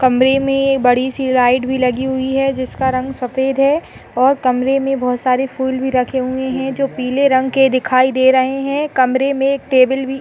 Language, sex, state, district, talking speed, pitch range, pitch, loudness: Hindi, female, Uttar Pradesh, Gorakhpur, 225 wpm, 255-270 Hz, 260 Hz, -15 LUFS